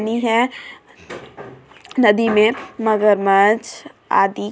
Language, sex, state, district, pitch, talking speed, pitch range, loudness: Hindi, female, Chhattisgarh, Balrampur, 220 Hz, 105 wpm, 205-235 Hz, -17 LUFS